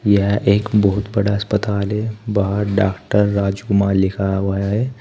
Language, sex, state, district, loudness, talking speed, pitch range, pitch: Hindi, male, Uttar Pradesh, Saharanpur, -18 LUFS, 145 wpm, 100-105 Hz, 100 Hz